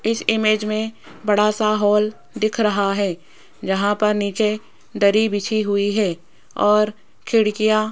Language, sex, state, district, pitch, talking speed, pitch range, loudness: Hindi, female, Rajasthan, Jaipur, 210 Hz, 145 wpm, 205-215 Hz, -19 LUFS